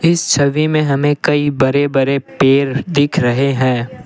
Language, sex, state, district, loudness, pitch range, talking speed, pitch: Hindi, male, Assam, Kamrup Metropolitan, -14 LUFS, 135-145 Hz, 165 wpm, 140 Hz